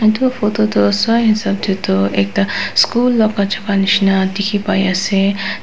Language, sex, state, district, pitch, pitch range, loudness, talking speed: Nagamese, female, Nagaland, Dimapur, 200 Hz, 190-215 Hz, -15 LUFS, 180 wpm